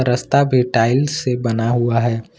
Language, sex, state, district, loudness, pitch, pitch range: Hindi, male, Jharkhand, Ranchi, -17 LUFS, 125 Hz, 115-130 Hz